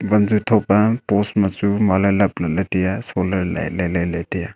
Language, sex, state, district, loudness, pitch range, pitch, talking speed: Wancho, male, Arunachal Pradesh, Longding, -19 LUFS, 90-105 Hz, 100 Hz, 235 wpm